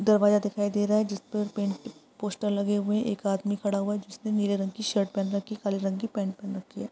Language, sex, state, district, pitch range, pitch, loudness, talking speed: Hindi, female, Uttar Pradesh, Varanasi, 200-210 Hz, 205 Hz, -28 LUFS, 270 wpm